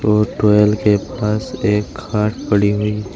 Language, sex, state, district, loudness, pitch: Hindi, male, Uttar Pradesh, Shamli, -17 LUFS, 105 Hz